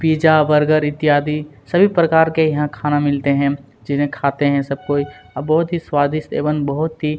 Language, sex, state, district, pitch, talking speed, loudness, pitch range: Hindi, male, Chhattisgarh, Kabirdham, 150 Hz, 185 wpm, -17 LUFS, 145-155 Hz